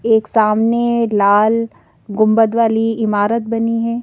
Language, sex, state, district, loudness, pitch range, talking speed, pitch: Hindi, female, Madhya Pradesh, Bhopal, -15 LUFS, 215-230 Hz, 120 wpm, 225 Hz